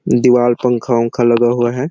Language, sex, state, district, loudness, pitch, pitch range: Hindi, male, Chhattisgarh, Sarguja, -14 LUFS, 120 Hz, 120-125 Hz